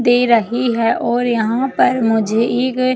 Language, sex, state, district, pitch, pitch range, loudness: Hindi, female, Chhattisgarh, Jashpur, 240 Hz, 230-250 Hz, -16 LUFS